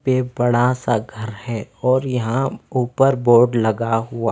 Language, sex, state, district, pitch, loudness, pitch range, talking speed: Hindi, male, Himachal Pradesh, Shimla, 120 Hz, -19 LUFS, 115-130 Hz, 155 wpm